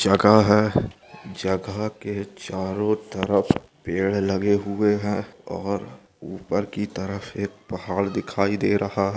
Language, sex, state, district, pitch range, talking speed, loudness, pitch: Hindi, male, Andhra Pradesh, Anantapur, 95-105 Hz, 85 wpm, -24 LUFS, 100 Hz